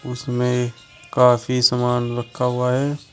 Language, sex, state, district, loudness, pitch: Hindi, male, Uttar Pradesh, Shamli, -20 LUFS, 125 Hz